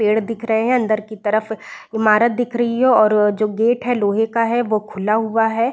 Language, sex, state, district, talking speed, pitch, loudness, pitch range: Hindi, female, Bihar, Saran, 230 wpm, 220 Hz, -18 LUFS, 215-235 Hz